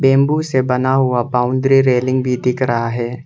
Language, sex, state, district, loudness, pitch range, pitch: Hindi, male, Arunachal Pradesh, Lower Dibang Valley, -16 LUFS, 125-135 Hz, 130 Hz